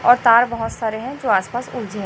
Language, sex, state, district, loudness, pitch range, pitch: Hindi, female, Chhattisgarh, Raipur, -18 LUFS, 220-245 Hz, 235 Hz